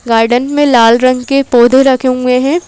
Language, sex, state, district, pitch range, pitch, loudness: Hindi, female, Madhya Pradesh, Bhopal, 245-270 Hz, 255 Hz, -9 LUFS